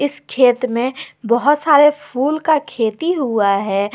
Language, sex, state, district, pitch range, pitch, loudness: Hindi, female, Jharkhand, Garhwa, 235-295 Hz, 265 Hz, -16 LUFS